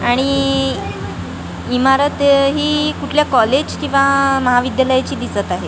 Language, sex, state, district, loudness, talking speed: Marathi, female, Maharashtra, Gondia, -15 LUFS, 105 wpm